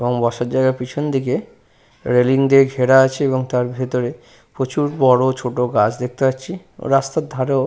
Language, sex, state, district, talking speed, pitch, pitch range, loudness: Bengali, male, West Bengal, Purulia, 140 wpm, 130 Hz, 125-135 Hz, -18 LUFS